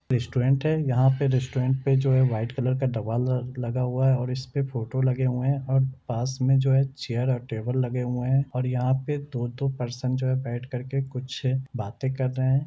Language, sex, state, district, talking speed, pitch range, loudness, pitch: Hindi, male, Jharkhand, Sahebganj, 225 wpm, 125-135 Hz, -26 LUFS, 130 Hz